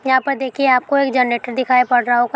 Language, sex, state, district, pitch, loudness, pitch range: Hindi, female, Bihar, Jamui, 255 Hz, -16 LUFS, 245-265 Hz